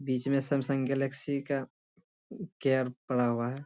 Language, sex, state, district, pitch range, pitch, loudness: Hindi, male, Bihar, Bhagalpur, 130-140 Hz, 135 Hz, -31 LUFS